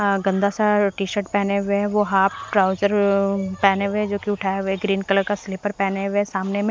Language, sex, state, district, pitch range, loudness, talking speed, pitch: Hindi, female, Haryana, Rohtak, 195-205 Hz, -21 LUFS, 205 wpm, 200 Hz